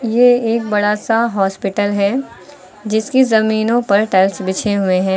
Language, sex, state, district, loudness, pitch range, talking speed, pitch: Hindi, female, Uttar Pradesh, Lucknow, -15 LUFS, 195-230 Hz, 150 wpm, 210 Hz